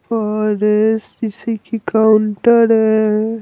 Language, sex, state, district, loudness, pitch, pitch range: Hindi, male, Bihar, Patna, -15 LUFS, 220 Hz, 215-225 Hz